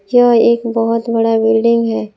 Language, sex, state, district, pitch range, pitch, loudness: Hindi, female, Jharkhand, Palamu, 225-235 Hz, 230 Hz, -13 LUFS